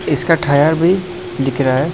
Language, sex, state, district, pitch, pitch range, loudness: Hindi, male, Assam, Hailakandi, 155 Hz, 140-175 Hz, -15 LUFS